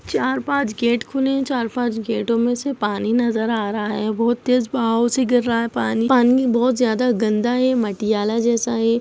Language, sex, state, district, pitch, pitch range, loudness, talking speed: Hindi, female, Jharkhand, Jamtara, 235 Hz, 225-250 Hz, -19 LUFS, 215 wpm